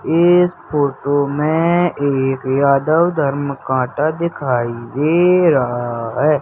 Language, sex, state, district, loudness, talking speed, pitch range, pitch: Hindi, male, Madhya Pradesh, Umaria, -16 LUFS, 105 wpm, 135-165 Hz, 145 Hz